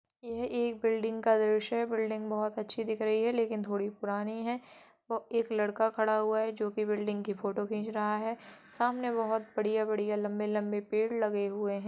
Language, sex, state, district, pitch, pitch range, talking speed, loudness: Hindi, female, Uttar Pradesh, Jalaun, 215 Hz, 210-225 Hz, 185 wpm, -32 LUFS